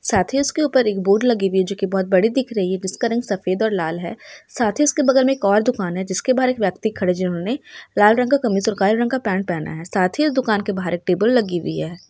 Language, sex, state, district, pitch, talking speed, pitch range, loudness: Hindi, female, Bihar, Sitamarhi, 205 Hz, 295 wpm, 190-250 Hz, -19 LUFS